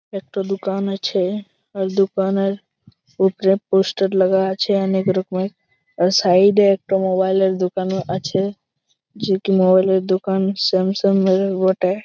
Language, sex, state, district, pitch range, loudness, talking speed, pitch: Bengali, male, West Bengal, Malda, 185-195 Hz, -18 LUFS, 115 wpm, 190 Hz